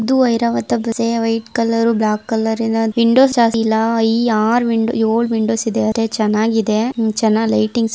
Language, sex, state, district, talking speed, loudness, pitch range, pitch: Kannada, female, Karnataka, Raichur, 150 wpm, -16 LUFS, 220-230 Hz, 225 Hz